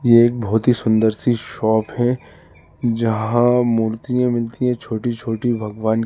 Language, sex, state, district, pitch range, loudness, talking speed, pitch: Hindi, male, Uttar Pradesh, Lalitpur, 110-120 Hz, -19 LUFS, 150 wpm, 115 Hz